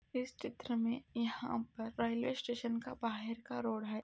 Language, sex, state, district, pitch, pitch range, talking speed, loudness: Hindi, female, Uttar Pradesh, Budaun, 235 Hz, 230-245 Hz, 180 wpm, -40 LUFS